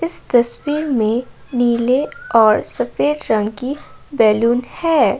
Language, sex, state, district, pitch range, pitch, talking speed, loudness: Hindi, female, Assam, Kamrup Metropolitan, 230-295 Hz, 250 Hz, 115 wpm, -17 LUFS